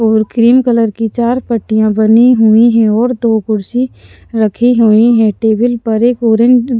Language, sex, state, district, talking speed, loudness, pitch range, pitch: Hindi, female, Punjab, Pathankot, 175 wpm, -10 LUFS, 220-240 Hz, 230 Hz